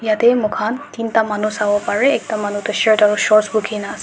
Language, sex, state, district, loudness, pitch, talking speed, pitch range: Nagamese, male, Nagaland, Dimapur, -17 LUFS, 215 Hz, 240 wpm, 210-225 Hz